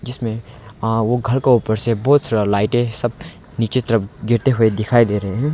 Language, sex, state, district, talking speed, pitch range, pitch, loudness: Hindi, male, Arunachal Pradesh, Longding, 215 wpm, 110-125 Hz, 115 Hz, -18 LUFS